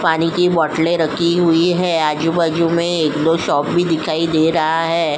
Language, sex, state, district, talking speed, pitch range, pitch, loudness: Hindi, female, Uttar Pradesh, Jyotiba Phule Nagar, 195 wpm, 160-170 Hz, 165 Hz, -16 LUFS